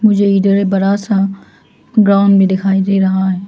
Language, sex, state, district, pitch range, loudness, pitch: Hindi, female, Arunachal Pradesh, Lower Dibang Valley, 195-200 Hz, -12 LUFS, 195 Hz